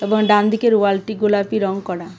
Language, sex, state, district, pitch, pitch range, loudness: Bengali, female, Tripura, West Tripura, 205 Hz, 195-215 Hz, -17 LUFS